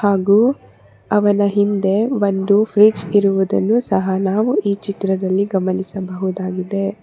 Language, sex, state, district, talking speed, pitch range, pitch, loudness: Kannada, female, Karnataka, Bangalore, 95 wpm, 190-205 Hz, 200 Hz, -17 LUFS